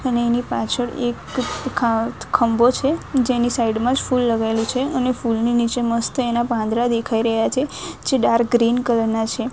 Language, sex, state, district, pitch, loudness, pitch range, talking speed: Gujarati, female, Gujarat, Gandhinagar, 240 Hz, -20 LUFS, 230-255 Hz, 180 wpm